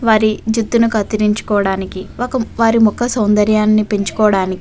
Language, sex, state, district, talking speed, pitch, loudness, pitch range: Telugu, female, Andhra Pradesh, Visakhapatnam, 115 wpm, 215 Hz, -15 LUFS, 205-225 Hz